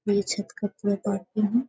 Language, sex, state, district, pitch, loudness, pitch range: Hindi, female, Bihar, Sitamarhi, 205 Hz, -28 LUFS, 200-210 Hz